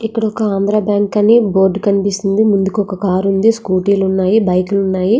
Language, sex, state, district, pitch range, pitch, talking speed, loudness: Telugu, female, Andhra Pradesh, Srikakulam, 190-215 Hz, 200 Hz, 195 wpm, -14 LUFS